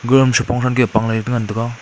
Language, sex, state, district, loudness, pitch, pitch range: Wancho, male, Arunachal Pradesh, Longding, -16 LUFS, 120 Hz, 115-125 Hz